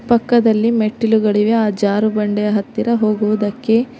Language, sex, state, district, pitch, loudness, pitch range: Kannada, female, Karnataka, Koppal, 215 Hz, -16 LUFS, 210-230 Hz